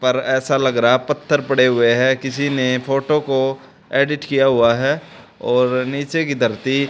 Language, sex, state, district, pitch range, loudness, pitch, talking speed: Hindi, male, Haryana, Charkhi Dadri, 125-140 Hz, -17 LUFS, 135 Hz, 175 wpm